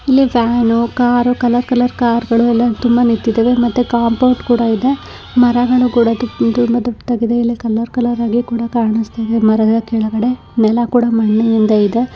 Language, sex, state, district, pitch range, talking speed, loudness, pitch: Kannada, female, Karnataka, Raichur, 230-245 Hz, 150 wpm, -14 LUFS, 235 Hz